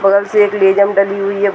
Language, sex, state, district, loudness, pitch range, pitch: Hindi, female, Bihar, Gaya, -12 LUFS, 195-200 Hz, 200 Hz